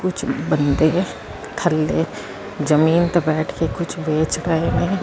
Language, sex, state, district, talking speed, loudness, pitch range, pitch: Punjabi, female, Karnataka, Bangalore, 130 wpm, -19 LUFS, 155-175 Hz, 165 Hz